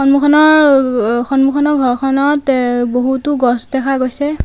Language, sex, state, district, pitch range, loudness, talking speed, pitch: Assamese, female, Assam, Sonitpur, 250-285 Hz, -13 LUFS, 120 wpm, 270 Hz